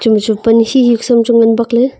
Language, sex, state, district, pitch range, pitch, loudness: Wancho, female, Arunachal Pradesh, Longding, 225-240 Hz, 230 Hz, -11 LUFS